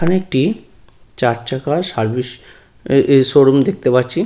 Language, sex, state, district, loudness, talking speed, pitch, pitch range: Bengali, male, West Bengal, Purulia, -15 LUFS, 140 wpm, 135 Hz, 125-155 Hz